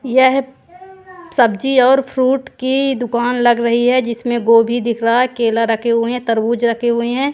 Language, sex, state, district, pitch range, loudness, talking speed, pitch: Hindi, female, Haryana, Jhajjar, 235-265 Hz, -15 LUFS, 180 wpm, 245 Hz